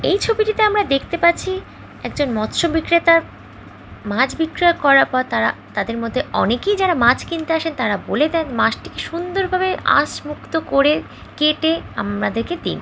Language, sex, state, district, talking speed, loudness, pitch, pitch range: Bengali, female, West Bengal, Jhargram, 145 wpm, -18 LUFS, 325 Hz, 275-350 Hz